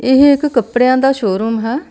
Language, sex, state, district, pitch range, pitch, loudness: Punjabi, female, Karnataka, Bangalore, 225-275 Hz, 255 Hz, -13 LUFS